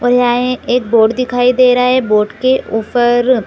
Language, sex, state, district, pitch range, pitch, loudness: Hindi, female, Chhattisgarh, Bilaspur, 235-255 Hz, 245 Hz, -12 LUFS